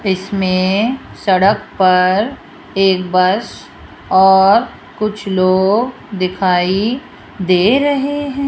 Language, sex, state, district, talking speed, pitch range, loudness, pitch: Hindi, female, Rajasthan, Jaipur, 85 wpm, 185-220 Hz, -14 LUFS, 195 Hz